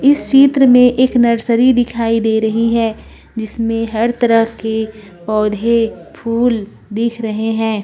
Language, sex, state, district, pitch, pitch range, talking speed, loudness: Hindi, female, Uttarakhand, Tehri Garhwal, 230 Hz, 220-240 Hz, 130 wpm, -14 LUFS